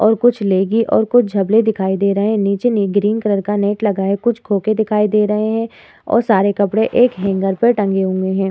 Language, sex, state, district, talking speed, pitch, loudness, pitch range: Hindi, female, Uttar Pradesh, Muzaffarnagar, 240 wpm, 210 Hz, -16 LUFS, 195-225 Hz